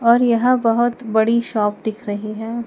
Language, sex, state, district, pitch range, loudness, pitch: Hindi, female, Madhya Pradesh, Dhar, 220-235 Hz, -18 LUFS, 230 Hz